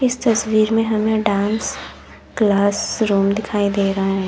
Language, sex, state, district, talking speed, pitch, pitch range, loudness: Hindi, female, Uttar Pradesh, Lalitpur, 155 wpm, 215 Hz, 200-220 Hz, -18 LUFS